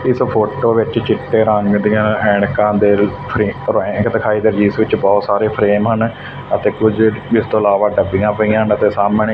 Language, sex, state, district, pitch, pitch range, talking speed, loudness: Punjabi, male, Punjab, Fazilka, 105 Hz, 105-110 Hz, 175 wpm, -14 LUFS